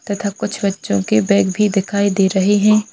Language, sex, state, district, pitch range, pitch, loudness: Hindi, female, Chhattisgarh, Bilaspur, 190-205 Hz, 200 Hz, -16 LUFS